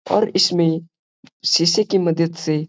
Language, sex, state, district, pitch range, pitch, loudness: Hindi, male, Bihar, Gaya, 165-185 Hz, 170 Hz, -18 LUFS